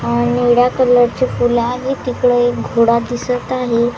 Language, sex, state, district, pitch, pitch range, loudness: Marathi, female, Maharashtra, Washim, 245 Hz, 235-250 Hz, -15 LUFS